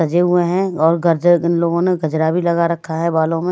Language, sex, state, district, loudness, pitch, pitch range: Hindi, male, Bihar, West Champaran, -16 LUFS, 170 Hz, 165-175 Hz